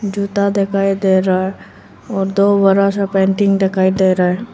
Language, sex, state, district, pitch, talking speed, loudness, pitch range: Hindi, female, Arunachal Pradesh, Lower Dibang Valley, 195 Hz, 185 wpm, -15 LUFS, 190-200 Hz